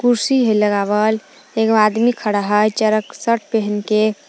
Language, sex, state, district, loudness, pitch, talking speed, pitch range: Magahi, female, Jharkhand, Palamu, -17 LUFS, 215 Hz, 140 wpm, 210-230 Hz